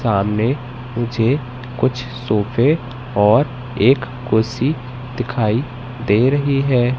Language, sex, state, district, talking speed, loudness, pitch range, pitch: Hindi, male, Madhya Pradesh, Katni, 95 wpm, -18 LUFS, 115-130 Hz, 125 Hz